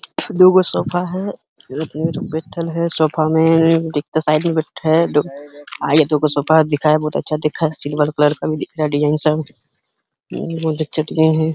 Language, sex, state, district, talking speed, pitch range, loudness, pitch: Hindi, male, Uttar Pradesh, Hamirpur, 145 wpm, 150-165 Hz, -17 LUFS, 155 Hz